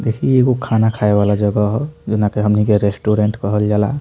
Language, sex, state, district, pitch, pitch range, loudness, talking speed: Bhojpuri, male, Bihar, Muzaffarpur, 105 Hz, 105-110 Hz, -16 LUFS, 225 wpm